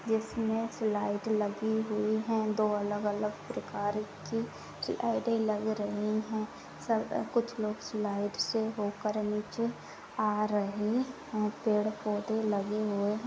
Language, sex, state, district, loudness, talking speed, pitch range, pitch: Hindi, female, Uttar Pradesh, Budaun, -32 LUFS, 125 wpm, 210-220 Hz, 215 Hz